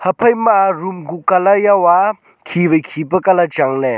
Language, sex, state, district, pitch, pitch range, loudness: Wancho, male, Arunachal Pradesh, Longding, 185 Hz, 165-195 Hz, -14 LUFS